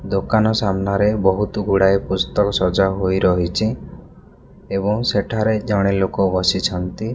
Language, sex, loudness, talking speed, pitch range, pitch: Odia, male, -18 LUFS, 110 wpm, 95-105 Hz, 100 Hz